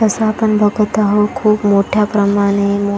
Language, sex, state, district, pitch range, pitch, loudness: Marathi, female, Maharashtra, Chandrapur, 200-215 Hz, 210 Hz, -14 LUFS